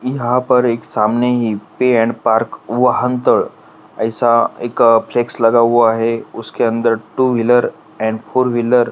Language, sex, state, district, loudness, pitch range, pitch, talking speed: Hindi, male, Maharashtra, Pune, -15 LUFS, 115-125 Hz, 120 Hz, 155 wpm